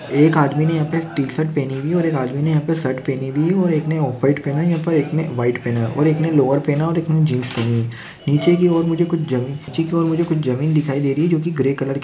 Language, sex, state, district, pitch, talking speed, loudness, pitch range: Hindi, male, Rajasthan, Churu, 150 Hz, 325 wpm, -19 LUFS, 135-165 Hz